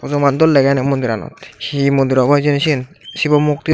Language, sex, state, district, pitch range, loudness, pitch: Chakma, male, Tripura, Dhalai, 135-150 Hz, -15 LUFS, 140 Hz